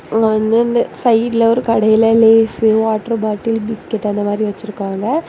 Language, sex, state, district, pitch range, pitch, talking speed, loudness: Tamil, female, Tamil Nadu, Kanyakumari, 215-230 Hz, 220 Hz, 145 wpm, -15 LUFS